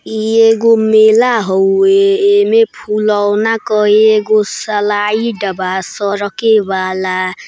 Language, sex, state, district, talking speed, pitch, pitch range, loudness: Bhojpuri, female, Uttar Pradesh, Gorakhpur, 95 wpm, 215 Hz, 200-225 Hz, -12 LUFS